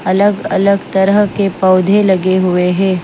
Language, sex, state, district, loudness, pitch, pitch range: Hindi, female, Bihar, Patna, -12 LUFS, 190 Hz, 185-200 Hz